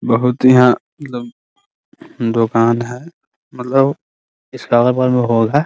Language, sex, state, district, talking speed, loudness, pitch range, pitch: Hindi, male, Bihar, Muzaffarpur, 140 wpm, -15 LUFS, 115-135 Hz, 125 Hz